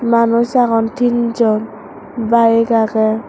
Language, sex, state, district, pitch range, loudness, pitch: Chakma, female, Tripura, West Tripura, 225-235 Hz, -14 LUFS, 230 Hz